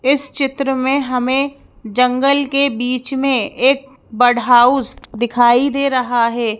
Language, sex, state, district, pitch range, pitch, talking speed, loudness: Hindi, male, Madhya Pradesh, Bhopal, 245-275 Hz, 260 Hz, 135 wpm, -15 LUFS